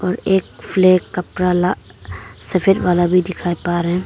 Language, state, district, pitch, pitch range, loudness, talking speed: Hindi, Arunachal Pradesh, Lower Dibang Valley, 180 Hz, 175-185 Hz, -17 LUFS, 160 wpm